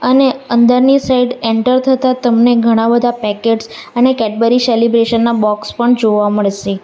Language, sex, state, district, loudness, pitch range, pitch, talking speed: Gujarati, female, Gujarat, Valsad, -12 LUFS, 225-250 Hz, 235 Hz, 150 wpm